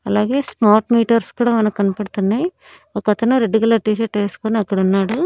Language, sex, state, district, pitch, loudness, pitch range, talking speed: Telugu, female, Andhra Pradesh, Annamaya, 220 Hz, -17 LUFS, 205-230 Hz, 150 wpm